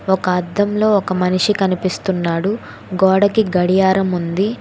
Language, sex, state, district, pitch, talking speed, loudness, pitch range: Telugu, female, Telangana, Hyderabad, 190 Hz, 105 wpm, -16 LUFS, 180-200 Hz